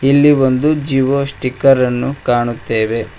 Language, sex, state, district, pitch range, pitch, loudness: Kannada, male, Karnataka, Koppal, 120-140 Hz, 130 Hz, -14 LUFS